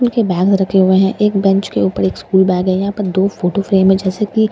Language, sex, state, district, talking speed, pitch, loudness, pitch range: Hindi, female, Bihar, Katihar, 280 wpm, 190 Hz, -14 LUFS, 185-200 Hz